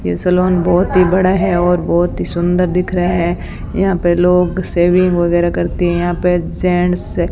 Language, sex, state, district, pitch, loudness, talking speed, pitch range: Hindi, female, Rajasthan, Bikaner, 180 Hz, -14 LUFS, 195 wpm, 175-180 Hz